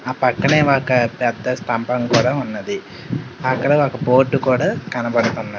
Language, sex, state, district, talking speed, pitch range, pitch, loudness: Telugu, male, Telangana, Hyderabad, 130 wpm, 120-140 Hz, 130 Hz, -18 LUFS